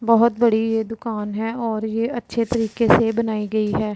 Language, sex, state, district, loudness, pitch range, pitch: Hindi, female, Punjab, Pathankot, -21 LUFS, 220-230 Hz, 225 Hz